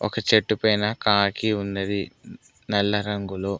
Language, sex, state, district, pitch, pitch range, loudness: Telugu, male, Telangana, Mahabubabad, 105 Hz, 100-110 Hz, -23 LUFS